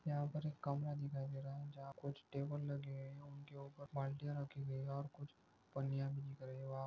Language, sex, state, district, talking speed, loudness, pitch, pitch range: Hindi, male, Maharashtra, Chandrapur, 210 wpm, -47 LUFS, 140 Hz, 135-145 Hz